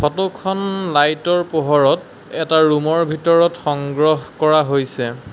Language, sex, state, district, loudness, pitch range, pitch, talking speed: Assamese, male, Assam, Sonitpur, -17 LUFS, 145-170 Hz, 155 Hz, 100 wpm